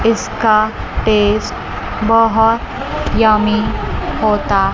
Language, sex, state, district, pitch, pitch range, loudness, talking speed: Hindi, female, Chandigarh, Chandigarh, 220 Hz, 215-225 Hz, -15 LUFS, 65 wpm